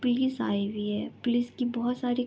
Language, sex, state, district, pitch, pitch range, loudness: Hindi, female, West Bengal, Jalpaiguri, 245 Hz, 210-250 Hz, -29 LUFS